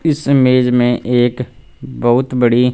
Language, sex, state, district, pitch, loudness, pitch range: Hindi, male, Punjab, Fazilka, 125 Hz, -13 LUFS, 120-130 Hz